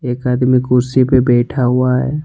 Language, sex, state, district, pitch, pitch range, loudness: Hindi, male, Jharkhand, Ranchi, 125 Hz, 125-130 Hz, -14 LUFS